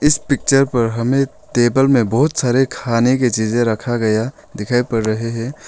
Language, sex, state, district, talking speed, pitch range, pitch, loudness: Hindi, male, Arunachal Pradesh, Longding, 180 wpm, 115-135 Hz, 120 Hz, -16 LUFS